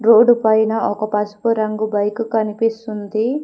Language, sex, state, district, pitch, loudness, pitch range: Telugu, female, Telangana, Komaram Bheem, 220 Hz, -18 LUFS, 215-225 Hz